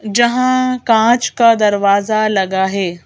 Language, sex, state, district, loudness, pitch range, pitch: Hindi, female, Madhya Pradesh, Bhopal, -13 LUFS, 200-240 Hz, 215 Hz